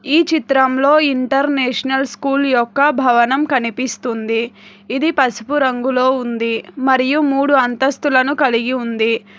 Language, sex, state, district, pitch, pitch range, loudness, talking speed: Telugu, female, Telangana, Hyderabad, 265 Hz, 245-275 Hz, -16 LUFS, 100 wpm